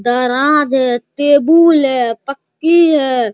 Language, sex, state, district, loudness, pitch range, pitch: Hindi, male, Bihar, Araria, -12 LUFS, 250-300 Hz, 275 Hz